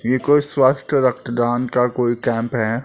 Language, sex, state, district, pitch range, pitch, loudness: Hindi, male, Uttar Pradesh, Etah, 120-130 Hz, 125 Hz, -18 LUFS